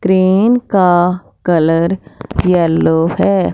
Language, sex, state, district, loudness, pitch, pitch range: Hindi, female, Punjab, Fazilka, -13 LUFS, 180 Hz, 165-190 Hz